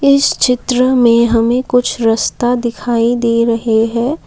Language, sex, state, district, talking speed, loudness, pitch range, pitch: Hindi, female, Assam, Kamrup Metropolitan, 140 wpm, -13 LUFS, 230-250 Hz, 240 Hz